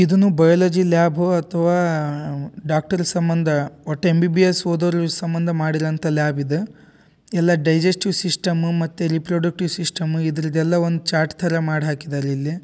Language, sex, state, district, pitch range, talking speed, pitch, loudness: Kannada, male, Karnataka, Dharwad, 155-175 Hz, 125 wpm, 170 Hz, -20 LUFS